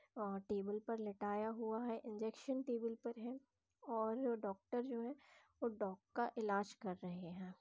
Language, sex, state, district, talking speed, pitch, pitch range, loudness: Hindi, female, Bihar, East Champaran, 165 wpm, 225 Hz, 205-240 Hz, -44 LUFS